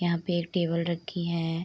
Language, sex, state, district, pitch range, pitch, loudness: Hindi, female, Bihar, Darbhanga, 170-175 Hz, 170 Hz, -29 LUFS